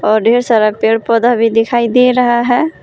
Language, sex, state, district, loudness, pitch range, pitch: Hindi, female, Jharkhand, Palamu, -11 LUFS, 225-245 Hz, 235 Hz